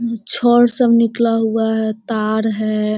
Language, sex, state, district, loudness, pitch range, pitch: Hindi, female, Bihar, Sitamarhi, -16 LUFS, 215-235 Hz, 225 Hz